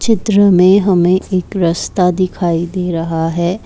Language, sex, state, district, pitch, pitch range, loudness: Hindi, female, Assam, Kamrup Metropolitan, 180 Hz, 170-190 Hz, -13 LUFS